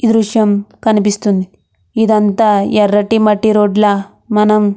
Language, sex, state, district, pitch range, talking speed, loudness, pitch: Telugu, female, Andhra Pradesh, Krishna, 205-215 Hz, 115 wpm, -12 LUFS, 210 Hz